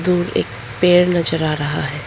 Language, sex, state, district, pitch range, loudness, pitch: Hindi, female, Arunachal Pradesh, Lower Dibang Valley, 145-175 Hz, -17 LUFS, 155 Hz